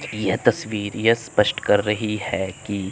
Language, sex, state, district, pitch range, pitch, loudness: Hindi, male, Chandigarh, Chandigarh, 100-110 Hz, 105 Hz, -22 LUFS